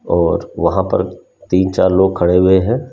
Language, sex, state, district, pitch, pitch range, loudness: Hindi, male, Delhi, New Delhi, 95 Hz, 90-95 Hz, -14 LUFS